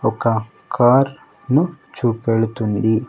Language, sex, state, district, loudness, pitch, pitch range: Telugu, male, Andhra Pradesh, Sri Satya Sai, -18 LUFS, 115 Hz, 110-135 Hz